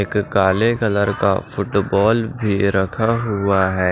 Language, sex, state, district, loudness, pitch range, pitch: Hindi, male, Maharashtra, Washim, -18 LUFS, 95-110 Hz, 100 Hz